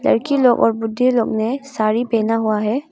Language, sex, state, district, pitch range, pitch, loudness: Hindi, female, Arunachal Pradesh, Longding, 220-255 Hz, 225 Hz, -18 LUFS